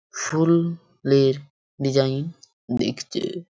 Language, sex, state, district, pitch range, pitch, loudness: Bengali, male, West Bengal, Purulia, 135-170 Hz, 145 Hz, -23 LUFS